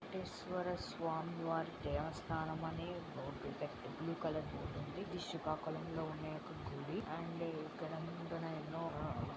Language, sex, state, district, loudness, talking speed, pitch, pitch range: Telugu, female, Andhra Pradesh, Srikakulam, -44 LUFS, 110 wpm, 160 Hz, 155-165 Hz